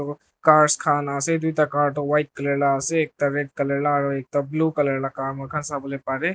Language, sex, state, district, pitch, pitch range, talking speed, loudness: Nagamese, male, Nagaland, Dimapur, 145 Hz, 140-150 Hz, 215 wpm, -22 LUFS